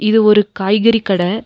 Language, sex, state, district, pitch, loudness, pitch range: Tamil, female, Tamil Nadu, Nilgiris, 210 Hz, -13 LUFS, 195-220 Hz